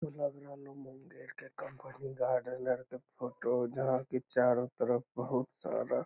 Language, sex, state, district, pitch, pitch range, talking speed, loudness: Magahi, male, Bihar, Lakhisarai, 130 Hz, 125-135 Hz, 110 wpm, -35 LUFS